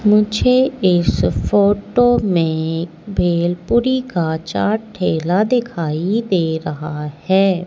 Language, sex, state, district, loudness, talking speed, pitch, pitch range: Hindi, female, Madhya Pradesh, Katni, -17 LUFS, 95 wpm, 185 Hz, 165-215 Hz